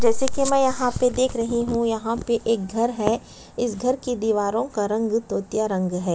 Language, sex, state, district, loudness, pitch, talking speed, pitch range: Hindi, female, Chhattisgarh, Sukma, -23 LUFS, 230 Hz, 235 wpm, 215-245 Hz